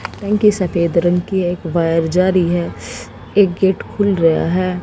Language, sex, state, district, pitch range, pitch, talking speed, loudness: Hindi, female, Haryana, Jhajjar, 170-190 Hz, 180 Hz, 185 wpm, -16 LUFS